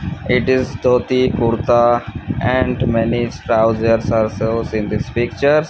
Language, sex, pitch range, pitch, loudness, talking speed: English, male, 115-125 Hz, 120 Hz, -17 LUFS, 125 wpm